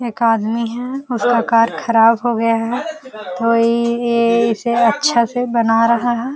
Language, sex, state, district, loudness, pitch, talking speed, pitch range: Hindi, female, Uttar Pradesh, Jalaun, -16 LUFS, 235 Hz, 170 wpm, 230-240 Hz